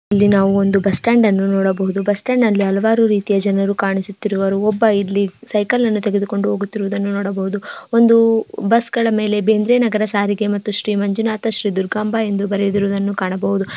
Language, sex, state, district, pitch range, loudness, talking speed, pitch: Kannada, female, Karnataka, Dharwad, 200-220 Hz, -17 LUFS, 145 wpm, 205 Hz